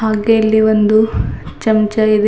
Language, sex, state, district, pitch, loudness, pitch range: Kannada, female, Karnataka, Bidar, 220 Hz, -14 LUFS, 215-220 Hz